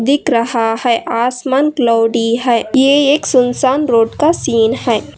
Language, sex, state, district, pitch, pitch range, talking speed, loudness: Hindi, female, Karnataka, Bangalore, 245 Hz, 230-275 Hz, 150 wpm, -13 LUFS